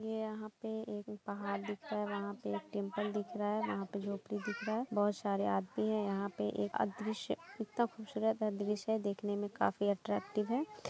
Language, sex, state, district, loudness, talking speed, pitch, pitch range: Hindi, female, Jharkhand, Jamtara, -38 LUFS, 215 wpm, 210 Hz, 200-220 Hz